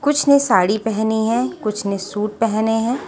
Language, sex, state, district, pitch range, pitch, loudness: Hindi, female, Haryana, Jhajjar, 210-240 Hz, 220 Hz, -18 LUFS